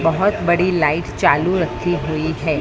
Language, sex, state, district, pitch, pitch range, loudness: Hindi, female, Maharashtra, Mumbai Suburban, 165 Hz, 155-180 Hz, -18 LUFS